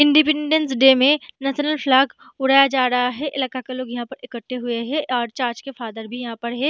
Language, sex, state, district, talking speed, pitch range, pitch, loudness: Hindi, female, Bihar, Samastipur, 225 wpm, 245-280 Hz, 260 Hz, -19 LUFS